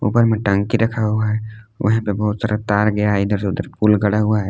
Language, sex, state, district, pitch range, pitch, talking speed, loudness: Hindi, male, Jharkhand, Palamu, 105-110 Hz, 105 Hz, 265 wpm, -18 LUFS